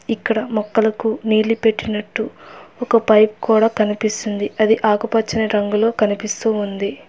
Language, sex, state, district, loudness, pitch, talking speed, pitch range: Telugu, female, Telangana, Hyderabad, -18 LUFS, 220 Hz, 110 wpm, 210-225 Hz